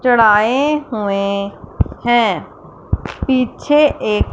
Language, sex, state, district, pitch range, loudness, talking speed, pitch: Hindi, female, Punjab, Fazilka, 200-260 Hz, -16 LUFS, 70 wpm, 235 Hz